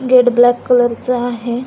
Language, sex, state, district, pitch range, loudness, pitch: Marathi, female, Maharashtra, Aurangabad, 240-250 Hz, -13 LUFS, 245 Hz